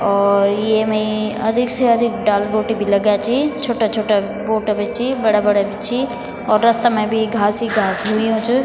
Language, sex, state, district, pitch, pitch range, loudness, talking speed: Garhwali, female, Uttarakhand, Tehri Garhwal, 220 Hz, 210-230 Hz, -17 LUFS, 195 wpm